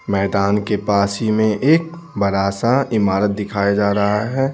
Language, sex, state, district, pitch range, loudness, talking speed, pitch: Hindi, male, Bihar, Patna, 100-120 Hz, -18 LUFS, 170 wpm, 105 Hz